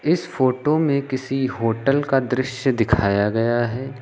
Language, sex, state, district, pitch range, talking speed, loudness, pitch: Hindi, male, Uttar Pradesh, Lucknow, 120-140 Hz, 150 wpm, -21 LUFS, 130 Hz